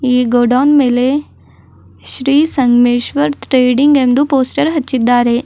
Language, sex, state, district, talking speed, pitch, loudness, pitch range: Kannada, female, Karnataka, Bidar, 100 wpm, 255 Hz, -12 LUFS, 245-280 Hz